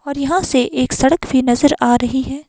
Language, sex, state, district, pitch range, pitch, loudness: Hindi, female, Himachal Pradesh, Shimla, 255-285 Hz, 265 Hz, -15 LUFS